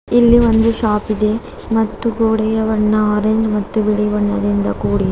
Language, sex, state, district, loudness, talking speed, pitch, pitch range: Kannada, female, Karnataka, Bidar, -16 LUFS, 140 wpm, 215 Hz, 210-225 Hz